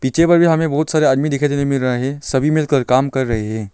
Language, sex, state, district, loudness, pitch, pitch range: Hindi, male, Arunachal Pradesh, Longding, -16 LUFS, 140 Hz, 130-150 Hz